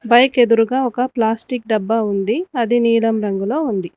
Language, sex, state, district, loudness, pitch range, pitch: Telugu, female, Telangana, Mahabubabad, -17 LUFS, 220-245 Hz, 230 Hz